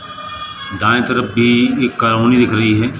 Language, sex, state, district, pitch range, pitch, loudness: Hindi, male, Madhya Pradesh, Katni, 115-130 Hz, 120 Hz, -13 LUFS